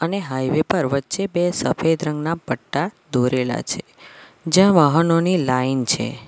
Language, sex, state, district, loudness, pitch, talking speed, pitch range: Gujarati, female, Gujarat, Valsad, -20 LUFS, 155 Hz, 135 wpm, 130-175 Hz